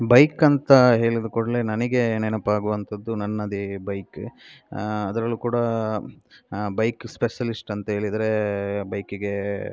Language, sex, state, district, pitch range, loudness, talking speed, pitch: Kannada, male, Karnataka, Dakshina Kannada, 105-115 Hz, -23 LUFS, 90 wpm, 110 Hz